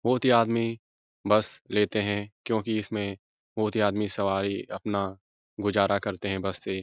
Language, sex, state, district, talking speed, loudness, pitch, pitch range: Hindi, male, Uttar Pradesh, Etah, 160 wpm, -27 LUFS, 105 Hz, 100-110 Hz